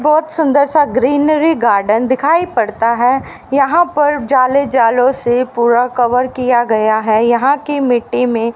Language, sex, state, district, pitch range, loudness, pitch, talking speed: Hindi, female, Haryana, Rohtak, 235-290 Hz, -13 LUFS, 255 Hz, 155 wpm